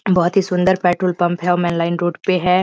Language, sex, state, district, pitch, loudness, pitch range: Hindi, female, Bihar, Jahanabad, 180 Hz, -17 LUFS, 175-185 Hz